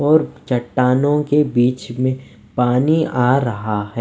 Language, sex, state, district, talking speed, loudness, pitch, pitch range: Hindi, male, Odisha, Nuapada, 135 wpm, -17 LUFS, 125 Hz, 120-145 Hz